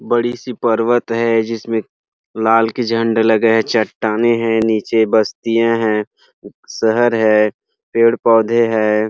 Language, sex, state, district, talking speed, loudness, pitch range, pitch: Hindi, male, Chhattisgarh, Rajnandgaon, 130 wpm, -15 LUFS, 110-115 Hz, 115 Hz